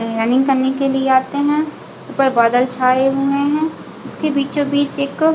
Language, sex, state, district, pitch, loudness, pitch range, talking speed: Hindi, female, Chhattisgarh, Bilaspur, 275 Hz, -16 LUFS, 260-290 Hz, 155 wpm